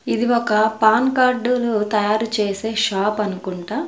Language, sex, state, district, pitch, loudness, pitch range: Telugu, female, Andhra Pradesh, Sri Satya Sai, 220 Hz, -19 LUFS, 210-240 Hz